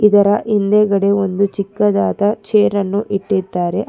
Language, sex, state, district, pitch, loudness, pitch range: Kannada, female, Karnataka, Bangalore, 205 Hz, -15 LUFS, 200-210 Hz